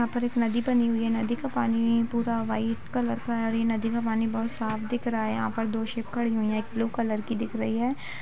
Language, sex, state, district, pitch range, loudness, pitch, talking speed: Hindi, female, Jharkhand, Sahebganj, 225-235 Hz, -28 LUFS, 230 Hz, 285 wpm